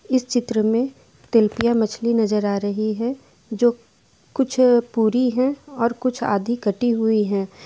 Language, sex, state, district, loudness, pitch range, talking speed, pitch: Hindi, female, Jharkhand, Ranchi, -20 LUFS, 215-245 Hz, 150 wpm, 235 Hz